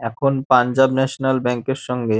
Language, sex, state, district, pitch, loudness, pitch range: Bengali, male, West Bengal, Dakshin Dinajpur, 130 Hz, -19 LUFS, 125-135 Hz